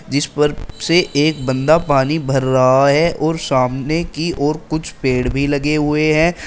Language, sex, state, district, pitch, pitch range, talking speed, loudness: Hindi, male, Uttar Pradesh, Shamli, 150 Hz, 135-160 Hz, 175 wpm, -16 LUFS